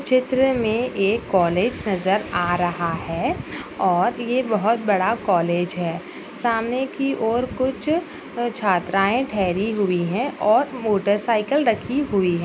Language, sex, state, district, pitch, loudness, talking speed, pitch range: Hindi, female, Bihar, Madhepura, 220 Hz, -21 LUFS, 130 wpm, 185-255 Hz